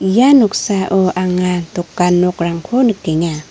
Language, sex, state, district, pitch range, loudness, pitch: Garo, female, Meghalaya, North Garo Hills, 175-200 Hz, -14 LUFS, 180 Hz